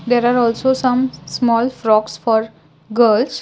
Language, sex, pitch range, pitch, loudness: English, female, 215-250 Hz, 235 Hz, -16 LUFS